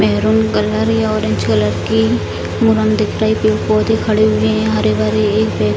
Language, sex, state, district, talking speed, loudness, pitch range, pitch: Hindi, female, Bihar, Jamui, 135 wpm, -15 LUFS, 105-110 Hz, 110 Hz